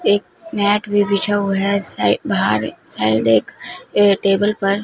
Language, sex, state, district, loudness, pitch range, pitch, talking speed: Hindi, female, Punjab, Fazilka, -16 LUFS, 195-205 Hz, 200 Hz, 160 wpm